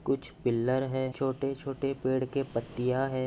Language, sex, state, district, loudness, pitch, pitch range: Hindi, male, Maharashtra, Nagpur, -31 LUFS, 130 Hz, 130-135 Hz